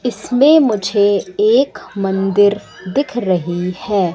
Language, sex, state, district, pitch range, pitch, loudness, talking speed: Hindi, female, Madhya Pradesh, Katni, 190-255 Hz, 205 Hz, -15 LUFS, 100 wpm